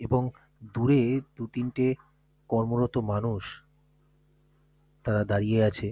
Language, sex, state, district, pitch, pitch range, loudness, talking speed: Bengali, male, West Bengal, North 24 Parganas, 125 Hz, 115-150 Hz, -28 LUFS, 100 wpm